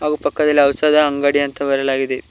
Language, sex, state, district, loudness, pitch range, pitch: Kannada, male, Karnataka, Koppal, -16 LUFS, 135-150 Hz, 145 Hz